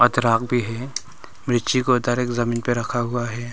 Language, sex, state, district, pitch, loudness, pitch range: Hindi, male, Arunachal Pradesh, Longding, 120 Hz, -22 LUFS, 120-125 Hz